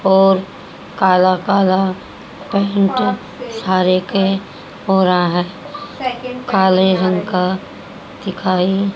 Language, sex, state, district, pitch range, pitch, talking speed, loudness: Hindi, female, Haryana, Rohtak, 185-200 Hz, 190 Hz, 95 wpm, -16 LUFS